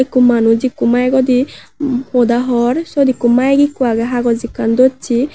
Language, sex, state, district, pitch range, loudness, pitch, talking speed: Chakma, female, Tripura, West Tripura, 240-260 Hz, -14 LUFS, 250 Hz, 170 wpm